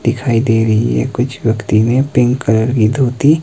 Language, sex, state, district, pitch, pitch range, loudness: Hindi, male, Himachal Pradesh, Shimla, 120 Hz, 110-130 Hz, -14 LUFS